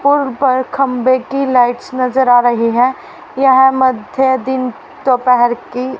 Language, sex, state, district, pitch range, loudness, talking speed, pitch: Hindi, female, Haryana, Rohtak, 245-265 Hz, -13 LUFS, 140 wpm, 255 Hz